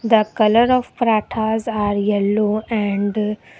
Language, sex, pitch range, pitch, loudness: English, female, 210-225 Hz, 215 Hz, -18 LUFS